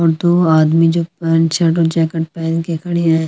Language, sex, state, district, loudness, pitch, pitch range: Hindi, female, Delhi, New Delhi, -15 LUFS, 165 Hz, 160-170 Hz